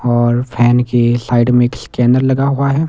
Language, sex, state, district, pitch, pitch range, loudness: Hindi, male, Himachal Pradesh, Shimla, 120 Hz, 120-130 Hz, -13 LUFS